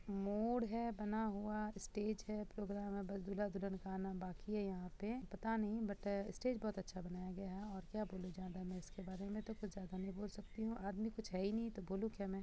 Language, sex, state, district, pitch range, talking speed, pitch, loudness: Hindi, female, Bihar, Purnia, 190-215 Hz, 235 wpm, 200 Hz, -45 LUFS